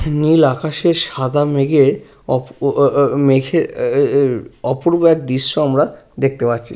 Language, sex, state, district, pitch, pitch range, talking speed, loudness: Bengali, male, West Bengal, Purulia, 145 Hz, 135-165 Hz, 170 wpm, -15 LUFS